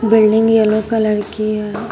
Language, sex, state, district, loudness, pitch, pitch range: Hindi, female, Uttar Pradesh, Shamli, -15 LUFS, 215 Hz, 215-220 Hz